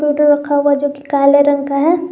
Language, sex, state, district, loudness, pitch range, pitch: Hindi, female, Jharkhand, Garhwa, -13 LUFS, 280-295 Hz, 285 Hz